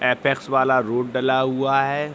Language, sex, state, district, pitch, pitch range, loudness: Hindi, male, Bihar, Begusarai, 130 Hz, 130-135 Hz, -20 LUFS